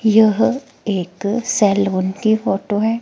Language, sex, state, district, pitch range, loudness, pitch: Hindi, female, Himachal Pradesh, Shimla, 195-220 Hz, -18 LUFS, 215 Hz